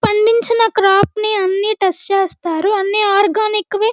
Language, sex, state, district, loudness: Telugu, female, Andhra Pradesh, Guntur, -15 LUFS